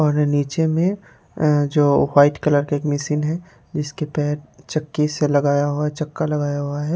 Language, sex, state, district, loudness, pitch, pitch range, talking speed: Hindi, male, Haryana, Charkhi Dadri, -20 LUFS, 150 Hz, 145-155 Hz, 170 wpm